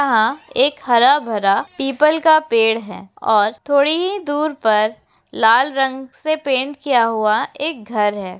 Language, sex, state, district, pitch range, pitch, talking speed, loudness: Hindi, female, Uttar Pradesh, Hamirpur, 220-290 Hz, 260 Hz, 155 wpm, -17 LUFS